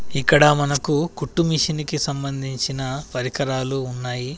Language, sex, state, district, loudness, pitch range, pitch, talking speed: Telugu, male, Telangana, Adilabad, -21 LUFS, 130-150 Hz, 140 Hz, 80 wpm